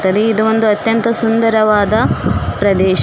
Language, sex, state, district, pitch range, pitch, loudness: Kannada, female, Karnataka, Koppal, 205-225 Hz, 220 Hz, -13 LUFS